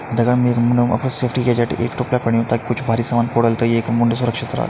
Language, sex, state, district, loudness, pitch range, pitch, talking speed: Hindi, male, Uttarakhand, Tehri Garhwal, -17 LUFS, 115-125 Hz, 120 Hz, 230 wpm